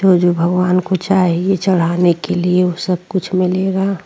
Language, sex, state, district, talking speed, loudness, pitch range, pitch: Hindi, female, Uttar Pradesh, Jyotiba Phule Nagar, 175 wpm, -15 LUFS, 175-185 Hz, 180 Hz